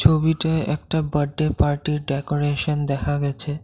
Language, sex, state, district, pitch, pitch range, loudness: Bengali, male, Assam, Kamrup Metropolitan, 150 Hz, 145-155 Hz, -22 LUFS